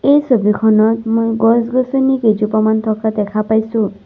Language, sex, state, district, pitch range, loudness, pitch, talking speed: Assamese, female, Assam, Sonitpur, 215-235 Hz, -14 LUFS, 220 Hz, 120 wpm